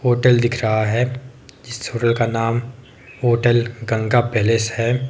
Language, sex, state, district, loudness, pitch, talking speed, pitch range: Hindi, male, Himachal Pradesh, Shimla, -19 LUFS, 120 Hz, 140 wpm, 115-125 Hz